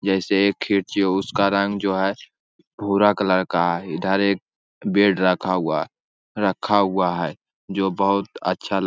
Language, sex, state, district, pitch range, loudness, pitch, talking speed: Hindi, male, Bihar, Jamui, 95-100 Hz, -21 LUFS, 95 Hz, 170 wpm